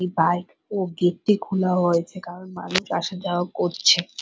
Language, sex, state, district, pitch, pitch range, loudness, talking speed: Bengali, female, West Bengal, Purulia, 180 Hz, 175-185 Hz, -22 LUFS, 170 wpm